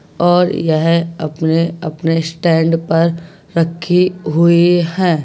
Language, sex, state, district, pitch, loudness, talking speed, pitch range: Hindi, male, Uttar Pradesh, Hamirpur, 165 Hz, -14 LUFS, 90 wpm, 165-175 Hz